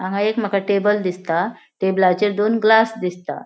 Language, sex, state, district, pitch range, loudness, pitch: Konkani, female, Goa, North and South Goa, 185-215 Hz, -19 LUFS, 200 Hz